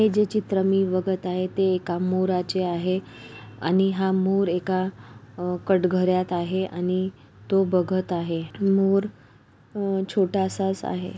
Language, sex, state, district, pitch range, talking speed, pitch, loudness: Marathi, female, Maharashtra, Solapur, 175-190 Hz, 140 wpm, 185 Hz, -24 LUFS